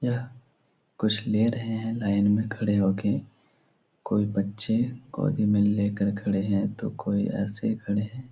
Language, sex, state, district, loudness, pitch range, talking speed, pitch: Hindi, male, Bihar, Supaul, -27 LUFS, 100-115 Hz, 165 wpm, 105 Hz